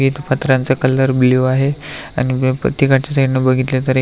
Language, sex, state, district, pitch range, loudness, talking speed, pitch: Marathi, male, Maharashtra, Aurangabad, 130-135 Hz, -15 LUFS, 165 wpm, 130 Hz